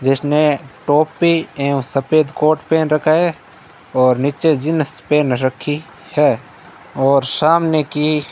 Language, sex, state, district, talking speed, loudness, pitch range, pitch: Hindi, male, Rajasthan, Bikaner, 130 wpm, -16 LUFS, 135-155 Hz, 150 Hz